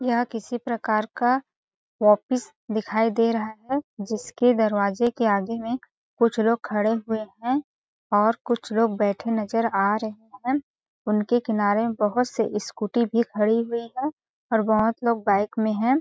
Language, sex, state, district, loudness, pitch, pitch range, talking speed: Hindi, female, Chhattisgarh, Balrampur, -24 LUFS, 225 Hz, 215-240 Hz, 160 wpm